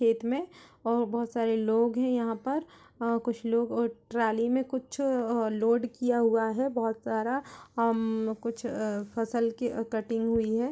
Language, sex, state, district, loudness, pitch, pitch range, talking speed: Hindi, female, Uttar Pradesh, Budaun, -29 LUFS, 230 Hz, 225-245 Hz, 160 wpm